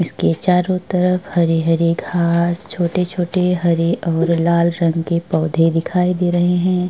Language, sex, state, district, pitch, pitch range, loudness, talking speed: Hindi, female, Maharashtra, Chandrapur, 170 Hz, 165-180 Hz, -17 LUFS, 155 wpm